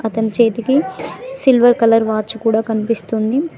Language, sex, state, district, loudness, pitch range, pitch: Telugu, female, Telangana, Mahabubabad, -15 LUFS, 220-255 Hz, 230 Hz